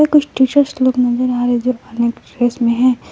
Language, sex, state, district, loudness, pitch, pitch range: Hindi, female, Jharkhand, Palamu, -15 LUFS, 250 Hz, 245-260 Hz